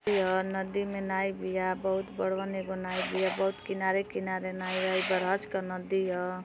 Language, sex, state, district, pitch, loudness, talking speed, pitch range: Hindi, female, Uttar Pradesh, Deoria, 190 Hz, -31 LUFS, 160 wpm, 185-195 Hz